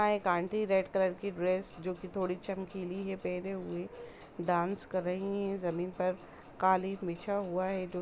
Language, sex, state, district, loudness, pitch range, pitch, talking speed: Hindi, female, Bihar, East Champaran, -34 LUFS, 180-195 Hz, 185 Hz, 180 wpm